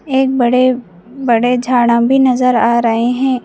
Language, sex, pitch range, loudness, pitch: Hindi, female, 235-255 Hz, -13 LUFS, 245 Hz